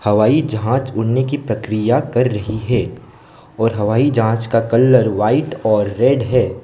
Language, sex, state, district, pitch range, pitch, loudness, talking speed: Hindi, male, West Bengal, Alipurduar, 110-130 Hz, 120 Hz, -16 LUFS, 155 wpm